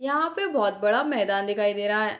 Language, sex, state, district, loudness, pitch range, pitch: Hindi, female, Bihar, Darbhanga, -24 LUFS, 205-285 Hz, 210 Hz